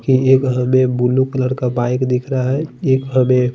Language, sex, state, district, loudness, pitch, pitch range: Hindi, male, Bihar, Patna, -16 LUFS, 130 Hz, 125-130 Hz